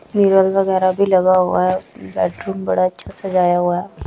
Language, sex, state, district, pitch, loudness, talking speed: Hindi, female, Chhattisgarh, Raipur, 185 Hz, -17 LUFS, 175 wpm